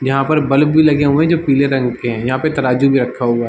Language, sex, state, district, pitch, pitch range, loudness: Hindi, male, Bihar, Darbhanga, 135 Hz, 125-150 Hz, -14 LUFS